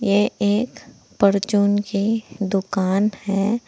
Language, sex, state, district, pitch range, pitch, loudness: Hindi, female, Uttar Pradesh, Saharanpur, 195-210 Hz, 205 Hz, -20 LUFS